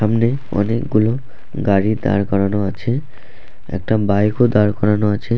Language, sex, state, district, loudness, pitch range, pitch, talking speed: Bengali, male, West Bengal, Purulia, -17 LUFS, 100-120 Hz, 105 Hz, 155 wpm